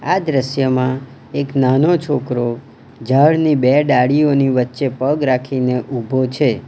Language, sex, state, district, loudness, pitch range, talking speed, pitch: Gujarati, male, Gujarat, Valsad, -16 LUFS, 125-145 Hz, 115 wpm, 130 Hz